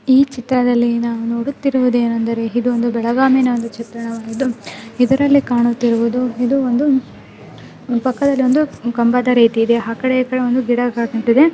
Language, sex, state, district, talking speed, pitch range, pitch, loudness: Kannada, female, Karnataka, Belgaum, 105 wpm, 235-260 Hz, 245 Hz, -16 LUFS